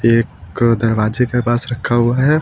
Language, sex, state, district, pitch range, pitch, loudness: Hindi, male, Uttar Pradesh, Lucknow, 115-125 Hz, 120 Hz, -15 LUFS